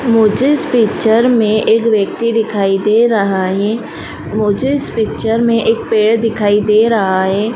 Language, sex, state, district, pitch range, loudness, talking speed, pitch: Hindi, female, Madhya Pradesh, Dhar, 210-230 Hz, -13 LUFS, 160 wpm, 220 Hz